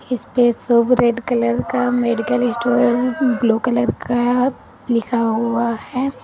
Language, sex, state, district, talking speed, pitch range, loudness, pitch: Hindi, female, Uttar Pradesh, Lalitpur, 135 wpm, 235-250 Hz, -18 LUFS, 240 Hz